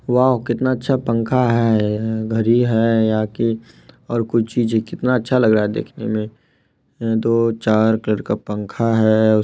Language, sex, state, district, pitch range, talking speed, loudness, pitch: Maithili, male, Bihar, Supaul, 110-120 Hz, 160 wpm, -18 LUFS, 115 Hz